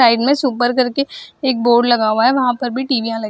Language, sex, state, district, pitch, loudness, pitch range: Hindi, female, Bihar, Jahanabad, 245 Hz, -16 LUFS, 235-260 Hz